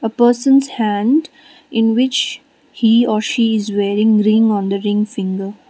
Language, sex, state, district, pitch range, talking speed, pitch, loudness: English, female, Sikkim, Gangtok, 205-245 Hz, 160 wpm, 220 Hz, -15 LUFS